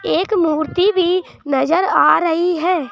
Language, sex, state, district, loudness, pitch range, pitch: Hindi, female, Madhya Pradesh, Bhopal, -16 LUFS, 310-365 Hz, 345 Hz